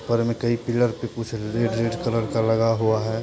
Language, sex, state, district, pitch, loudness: Hindi, male, Bihar, Purnia, 115 Hz, -23 LUFS